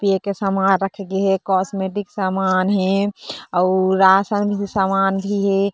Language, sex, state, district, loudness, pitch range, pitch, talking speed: Chhattisgarhi, female, Chhattisgarh, Korba, -19 LUFS, 190-200 Hz, 195 Hz, 155 wpm